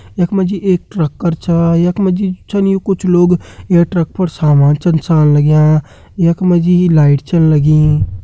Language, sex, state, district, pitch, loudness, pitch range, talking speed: Hindi, male, Uttarakhand, Uttarkashi, 170 Hz, -12 LUFS, 155-180 Hz, 175 wpm